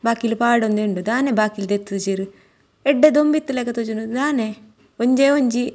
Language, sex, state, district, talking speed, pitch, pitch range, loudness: Tulu, female, Karnataka, Dakshina Kannada, 135 wpm, 230 Hz, 215-265 Hz, -19 LUFS